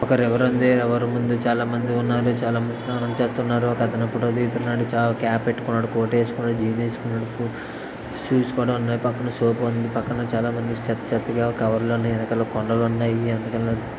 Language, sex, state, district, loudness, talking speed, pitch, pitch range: Telugu, male, Andhra Pradesh, Visakhapatnam, -23 LUFS, 150 wpm, 120 Hz, 115-120 Hz